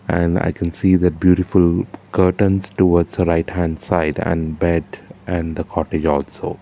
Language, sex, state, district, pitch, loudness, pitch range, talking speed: English, male, Karnataka, Bangalore, 90 Hz, -18 LUFS, 85-90 Hz, 165 wpm